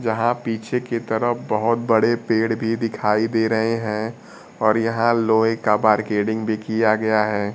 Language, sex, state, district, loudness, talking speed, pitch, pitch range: Hindi, male, Bihar, Kaimur, -20 LUFS, 165 wpm, 110 Hz, 110-115 Hz